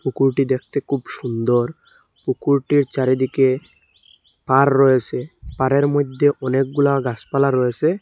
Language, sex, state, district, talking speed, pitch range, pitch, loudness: Bengali, male, Assam, Hailakandi, 95 wpm, 125-140 Hz, 135 Hz, -19 LUFS